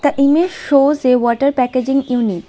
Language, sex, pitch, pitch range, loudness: English, female, 270 Hz, 250-285 Hz, -14 LUFS